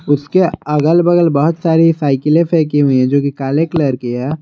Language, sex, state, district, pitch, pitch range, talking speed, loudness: Hindi, male, Jharkhand, Garhwa, 150 Hz, 140-165 Hz, 205 wpm, -13 LUFS